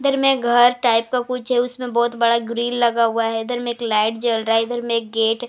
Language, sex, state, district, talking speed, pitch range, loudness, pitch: Hindi, female, Maharashtra, Mumbai Suburban, 285 wpm, 230-245 Hz, -19 LUFS, 235 Hz